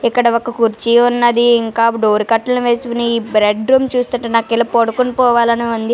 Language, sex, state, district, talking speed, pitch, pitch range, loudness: Telugu, female, Telangana, Karimnagar, 170 wpm, 235 Hz, 230-240 Hz, -14 LUFS